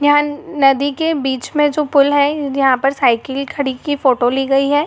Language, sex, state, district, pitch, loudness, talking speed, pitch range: Hindi, female, Jharkhand, Jamtara, 280 Hz, -15 LUFS, 210 wpm, 270-290 Hz